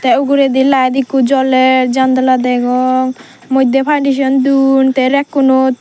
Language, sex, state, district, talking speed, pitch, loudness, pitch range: Chakma, female, Tripura, Dhalai, 125 wpm, 265 Hz, -12 LUFS, 255-270 Hz